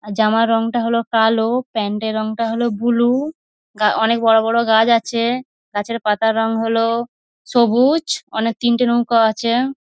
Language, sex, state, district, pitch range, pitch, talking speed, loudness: Bengali, female, West Bengal, North 24 Parganas, 225-240 Hz, 230 Hz, 155 wpm, -17 LUFS